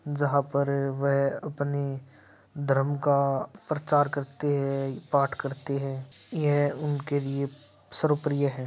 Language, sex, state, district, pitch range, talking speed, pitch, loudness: Hindi, male, Uttar Pradesh, Etah, 135-145 Hz, 120 wpm, 140 Hz, -28 LUFS